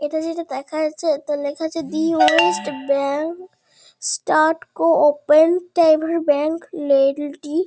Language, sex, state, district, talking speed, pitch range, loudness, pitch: Bengali, female, West Bengal, Kolkata, 140 wpm, 290-330 Hz, -19 LUFS, 310 Hz